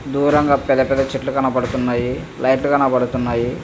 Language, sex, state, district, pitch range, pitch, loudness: Telugu, male, Andhra Pradesh, Visakhapatnam, 125-135 Hz, 130 Hz, -18 LUFS